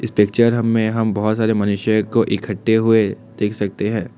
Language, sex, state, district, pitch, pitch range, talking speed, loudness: Hindi, male, Assam, Kamrup Metropolitan, 110 Hz, 105-115 Hz, 185 wpm, -18 LUFS